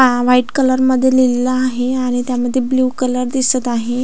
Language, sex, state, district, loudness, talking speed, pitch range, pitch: Marathi, female, Maharashtra, Aurangabad, -15 LUFS, 180 wpm, 245-260 Hz, 255 Hz